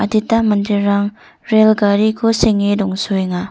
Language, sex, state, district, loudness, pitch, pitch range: Garo, female, Meghalaya, North Garo Hills, -15 LUFS, 205 Hz, 200-215 Hz